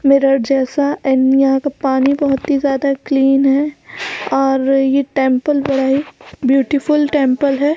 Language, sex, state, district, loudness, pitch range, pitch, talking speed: Hindi, female, Chhattisgarh, Balrampur, -15 LUFS, 270-285 Hz, 275 Hz, 155 wpm